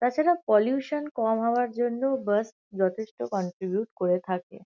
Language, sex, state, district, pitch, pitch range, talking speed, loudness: Bengali, female, West Bengal, Kolkata, 220 Hz, 190-245 Hz, 130 wpm, -27 LUFS